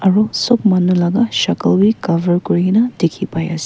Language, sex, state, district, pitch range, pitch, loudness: Nagamese, female, Nagaland, Kohima, 175-215 Hz, 190 Hz, -15 LUFS